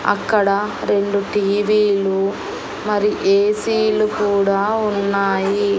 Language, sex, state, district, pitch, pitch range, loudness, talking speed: Telugu, female, Andhra Pradesh, Annamaya, 205 Hz, 200-210 Hz, -18 LUFS, 70 wpm